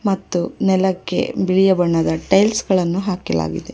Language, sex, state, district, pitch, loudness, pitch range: Kannada, female, Karnataka, Bangalore, 185 Hz, -18 LUFS, 170-195 Hz